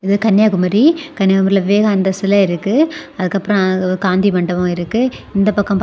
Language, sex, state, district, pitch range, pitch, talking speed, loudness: Tamil, female, Tamil Nadu, Kanyakumari, 185-210 Hz, 195 Hz, 145 wpm, -15 LUFS